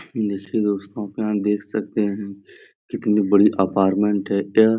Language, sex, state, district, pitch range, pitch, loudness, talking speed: Hindi, male, Bihar, Darbhanga, 100-110 Hz, 105 Hz, -21 LUFS, 140 wpm